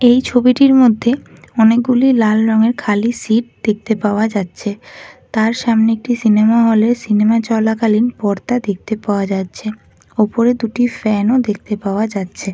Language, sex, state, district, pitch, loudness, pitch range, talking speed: Bengali, female, West Bengal, Kolkata, 220 Hz, -15 LUFS, 210-240 Hz, 140 wpm